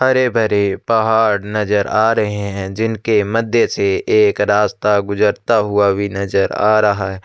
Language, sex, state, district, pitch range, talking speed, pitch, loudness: Hindi, male, Chhattisgarh, Sukma, 100-115 Hz, 140 wpm, 105 Hz, -15 LUFS